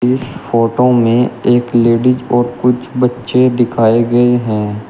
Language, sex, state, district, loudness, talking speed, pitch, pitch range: Hindi, male, Uttar Pradesh, Shamli, -13 LUFS, 135 wpm, 120 Hz, 115-125 Hz